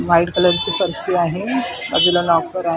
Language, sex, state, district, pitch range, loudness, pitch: Marathi, female, Maharashtra, Mumbai Suburban, 170-190 Hz, -17 LUFS, 180 Hz